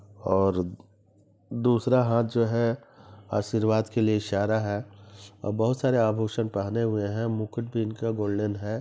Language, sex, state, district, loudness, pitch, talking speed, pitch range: Hindi, male, Chhattisgarh, Bilaspur, -27 LUFS, 110 Hz, 150 wpm, 100-115 Hz